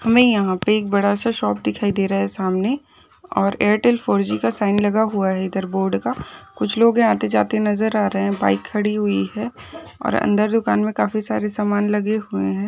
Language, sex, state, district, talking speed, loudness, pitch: Hindi, female, Jharkhand, Sahebganj, 205 wpm, -19 LUFS, 200 Hz